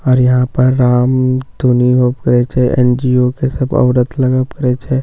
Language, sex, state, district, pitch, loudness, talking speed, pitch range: Maithili, male, Bihar, Katihar, 125 Hz, -13 LUFS, 200 wpm, 125-130 Hz